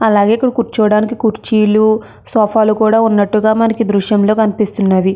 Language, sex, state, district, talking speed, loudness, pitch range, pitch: Telugu, female, Andhra Pradesh, Krishna, 130 wpm, -13 LUFS, 210-220 Hz, 215 Hz